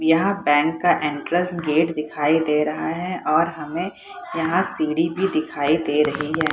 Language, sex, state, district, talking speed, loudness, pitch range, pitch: Hindi, female, Bihar, Purnia, 165 wpm, -21 LUFS, 150-175 Hz, 160 Hz